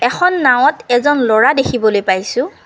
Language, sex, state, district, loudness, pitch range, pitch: Assamese, female, Assam, Kamrup Metropolitan, -13 LUFS, 220-285 Hz, 245 Hz